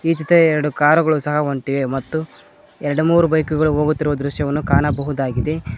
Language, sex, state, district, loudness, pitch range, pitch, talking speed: Kannada, male, Karnataka, Koppal, -18 LUFS, 140-155 Hz, 150 Hz, 125 wpm